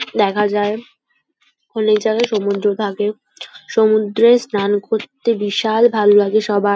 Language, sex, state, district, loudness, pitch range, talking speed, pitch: Bengali, female, West Bengal, Kolkata, -16 LUFS, 205-235 Hz, 115 wpm, 215 Hz